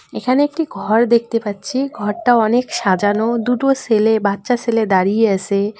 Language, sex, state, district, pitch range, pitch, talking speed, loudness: Bengali, female, West Bengal, Cooch Behar, 205-245 Hz, 225 Hz, 145 wpm, -16 LUFS